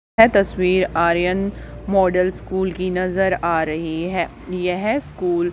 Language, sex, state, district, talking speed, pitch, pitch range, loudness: Hindi, female, Haryana, Charkhi Dadri, 140 wpm, 185 Hz, 175-190 Hz, -19 LUFS